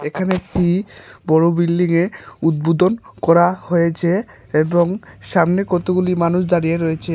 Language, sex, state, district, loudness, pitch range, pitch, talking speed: Bengali, male, Tripura, Unakoti, -17 LUFS, 165-185 Hz, 175 Hz, 115 wpm